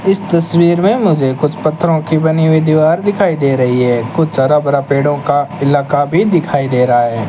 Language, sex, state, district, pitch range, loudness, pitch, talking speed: Hindi, male, Rajasthan, Bikaner, 140-170 Hz, -12 LUFS, 150 Hz, 205 wpm